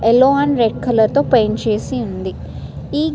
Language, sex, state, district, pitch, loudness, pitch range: Telugu, female, Andhra Pradesh, Srikakulam, 235 Hz, -16 LUFS, 220-275 Hz